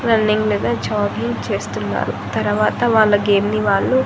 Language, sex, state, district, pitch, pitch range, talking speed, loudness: Telugu, female, Andhra Pradesh, Annamaya, 215 Hz, 205-230 Hz, 135 wpm, -18 LUFS